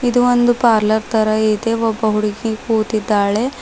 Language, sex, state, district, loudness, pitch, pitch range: Kannada, female, Karnataka, Bidar, -16 LUFS, 220 Hz, 215-235 Hz